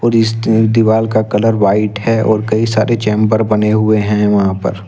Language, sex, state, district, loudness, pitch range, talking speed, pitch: Hindi, male, Jharkhand, Ranchi, -13 LUFS, 105-110 Hz, 195 wpm, 110 Hz